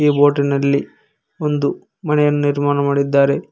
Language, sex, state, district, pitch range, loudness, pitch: Kannada, male, Karnataka, Koppal, 140-150 Hz, -17 LUFS, 145 Hz